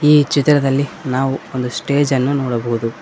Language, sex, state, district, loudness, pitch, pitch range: Kannada, male, Karnataka, Koppal, -17 LUFS, 135 Hz, 125-140 Hz